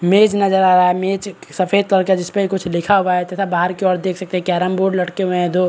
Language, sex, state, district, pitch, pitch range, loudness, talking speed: Hindi, male, Bihar, Araria, 185 Hz, 180-195 Hz, -16 LUFS, 295 wpm